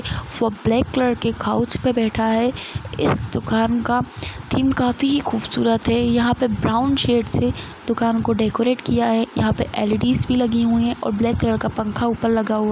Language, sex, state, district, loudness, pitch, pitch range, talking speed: Hindi, female, Chhattisgarh, Rajnandgaon, -20 LUFS, 230 Hz, 215-240 Hz, 190 wpm